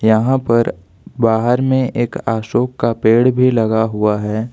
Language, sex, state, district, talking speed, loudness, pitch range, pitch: Hindi, male, Jharkhand, Ranchi, 160 wpm, -15 LUFS, 110-125 Hz, 115 Hz